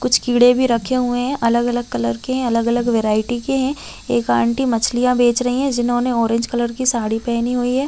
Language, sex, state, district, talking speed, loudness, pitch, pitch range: Hindi, female, Chhattisgarh, Raigarh, 220 wpm, -18 LUFS, 240 Hz, 230-250 Hz